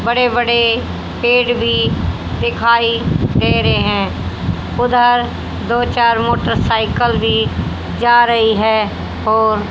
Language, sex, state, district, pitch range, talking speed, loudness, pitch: Hindi, female, Haryana, Jhajjar, 230-240 Hz, 105 wpm, -15 LUFS, 235 Hz